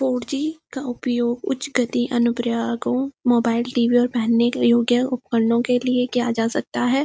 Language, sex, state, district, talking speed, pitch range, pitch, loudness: Hindi, female, Uttarakhand, Uttarkashi, 160 wpm, 235-250 Hz, 245 Hz, -21 LUFS